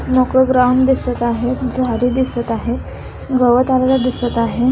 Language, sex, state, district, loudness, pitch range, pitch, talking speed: Marathi, female, Maharashtra, Solapur, -16 LUFS, 240-255 Hz, 250 Hz, 140 wpm